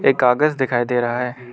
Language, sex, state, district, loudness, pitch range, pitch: Hindi, male, Arunachal Pradesh, Lower Dibang Valley, -19 LUFS, 120-130 Hz, 125 Hz